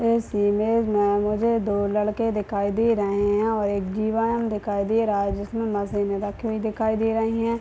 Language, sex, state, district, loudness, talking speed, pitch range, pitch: Hindi, male, Bihar, Muzaffarpur, -23 LUFS, 195 wpm, 205-225 Hz, 215 Hz